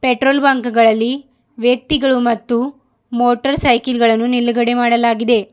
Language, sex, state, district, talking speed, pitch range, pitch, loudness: Kannada, female, Karnataka, Bidar, 110 wpm, 235-260 Hz, 245 Hz, -15 LUFS